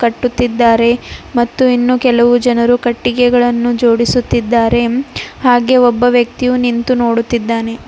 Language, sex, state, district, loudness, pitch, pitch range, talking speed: Kannada, female, Karnataka, Bidar, -12 LUFS, 240 Hz, 235-245 Hz, 90 wpm